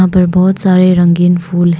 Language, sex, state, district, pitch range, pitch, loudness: Hindi, female, Arunachal Pradesh, Longding, 175-185 Hz, 180 Hz, -10 LUFS